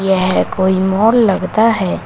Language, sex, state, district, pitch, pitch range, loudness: Hindi, female, Uttar Pradesh, Shamli, 190 Hz, 185-220 Hz, -13 LUFS